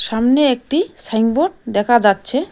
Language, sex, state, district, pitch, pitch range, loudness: Bengali, female, West Bengal, Cooch Behar, 245 Hz, 225-295 Hz, -16 LUFS